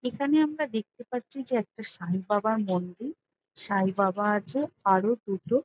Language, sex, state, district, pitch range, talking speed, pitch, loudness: Bengali, female, West Bengal, Jhargram, 195-255 Hz, 150 wpm, 220 Hz, -28 LUFS